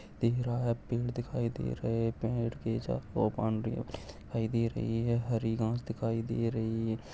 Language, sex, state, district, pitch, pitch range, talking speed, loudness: Hindi, male, Maharashtra, Nagpur, 115 Hz, 110-120 Hz, 175 wpm, -33 LUFS